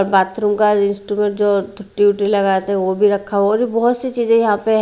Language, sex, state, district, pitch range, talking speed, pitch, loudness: Hindi, female, Haryana, Rohtak, 200-215 Hz, 210 wpm, 205 Hz, -16 LUFS